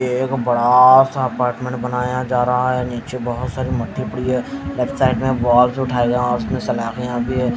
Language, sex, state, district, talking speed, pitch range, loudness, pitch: Hindi, male, Haryana, Jhajjar, 180 wpm, 120-130 Hz, -18 LUFS, 125 Hz